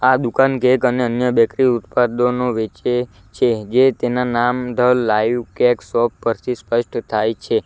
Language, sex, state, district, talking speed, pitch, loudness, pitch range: Gujarati, male, Gujarat, Valsad, 155 wpm, 120 Hz, -18 LUFS, 115-125 Hz